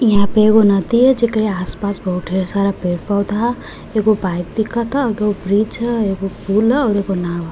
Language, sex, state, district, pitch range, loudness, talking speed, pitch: Bhojpuri, female, Uttar Pradesh, Varanasi, 195-220 Hz, -17 LUFS, 200 wpm, 205 Hz